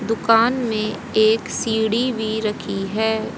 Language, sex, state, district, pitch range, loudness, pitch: Hindi, female, Haryana, Rohtak, 215-225 Hz, -20 LUFS, 220 Hz